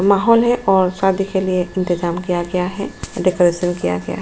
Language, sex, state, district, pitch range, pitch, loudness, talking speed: Hindi, female, Goa, North and South Goa, 175-195 Hz, 185 Hz, -17 LUFS, 200 wpm